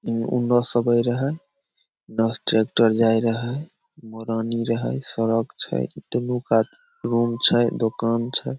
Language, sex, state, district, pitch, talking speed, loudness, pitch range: Maithili, male, Bihar, Samastipur, 115 Hz, 140 wpm, -22 LUFS, 115-120 Hz